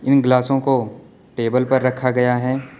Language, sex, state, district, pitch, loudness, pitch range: Hindi, male, Uttar Pradesh, Lucknow, 130 Hz, -18 LUFS, 125-135 Hz